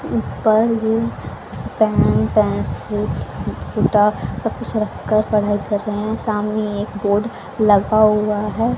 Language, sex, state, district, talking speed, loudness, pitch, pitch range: Hindi, female, Haryana, Charkhi Dadri, 130 wpm, -18 LUFS, 215 Hz, 210-220 Hz